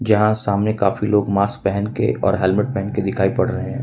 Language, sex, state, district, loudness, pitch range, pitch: Hindi, male, Jharkhand, Ranchi, -19 LUFS, 100-110 Hz, 105 Hz